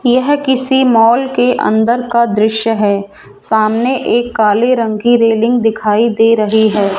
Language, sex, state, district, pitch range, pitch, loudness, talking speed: Hindi, female, Rajasthan, Jaipur, 215-245 Hz, 230 Hz, -12 LUFS, 155 wpm